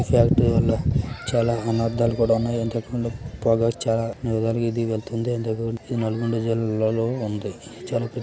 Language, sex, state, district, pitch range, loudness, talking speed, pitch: Telugu, male, Telangana, Nalgonda, 115-120 Hz, -23 LUFS, 145 wpm, 115 Hz